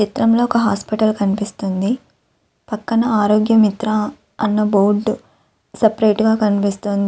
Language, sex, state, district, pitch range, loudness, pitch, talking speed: Telugu, female, Andhra Pradesh, Visakhapatnam, 205-220 Hz, -17 LUFS, 215 Hz, 110 wpm